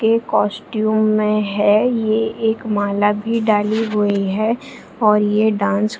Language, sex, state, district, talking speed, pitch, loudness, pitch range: Hindi, female, Bihar, Jahanabad, 150 wpm, 215 Hz, -17 LUFS, 205-220 Hz